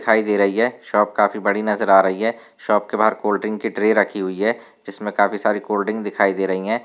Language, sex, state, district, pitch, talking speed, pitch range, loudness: Hindi, male, Rajasthan, Churu, 105 Hz, 265 wpm, 100-110 Hz, -19 LUFS